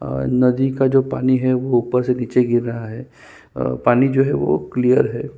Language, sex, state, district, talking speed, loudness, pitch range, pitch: Hindi, male, Chhattisgarh, Sukma, 235 wpm, -18 LUFS, 115-130 Hz, 125 Hz